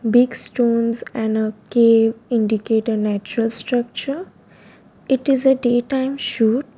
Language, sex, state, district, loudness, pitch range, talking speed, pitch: English, female, Gujarat, Valsad, -18 LUFS, 225-255 Hz, 125 wpm, 235 Hz